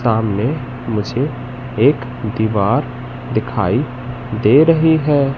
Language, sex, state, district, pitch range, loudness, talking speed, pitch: Hindi, male, Madhya Pradesh, Katni, 110-135 Hz, -17 LUFS, 90 wpm, 125 Hz